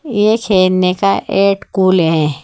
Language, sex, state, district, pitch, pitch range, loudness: Hindi, female, Uttar Pradesh, Saharanpur, 190 Hz, 180-200 Hz, -13 LUFS